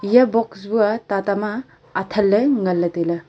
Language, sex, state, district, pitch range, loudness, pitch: Wancho, female, Arunachal Pradesh, Longding, 190-225 Hz, -19 LUFS, 205 Hz